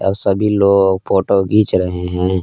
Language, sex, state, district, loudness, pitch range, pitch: Hindi, male, Jharkhand, Palamu, -15 LUFS, 95-100 Hz, 95 Hz